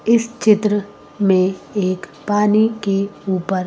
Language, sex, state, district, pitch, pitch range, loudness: Hindi, female, Madhya Pradesh, Bhopal, 200 Hz, 185-215 Hz, -18 LUFS